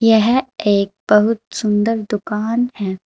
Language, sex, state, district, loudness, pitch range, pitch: Hindi, female, Uttar Pradesh, Shamli, -17 LUFS, 205-225 Hz, 215 Hz